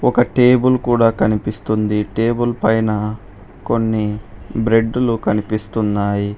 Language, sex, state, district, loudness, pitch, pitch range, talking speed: Telugu, male, Telangana, Hyderabad, -17 LUFS, 110 Hz, 105-115 Hz, 85 wpm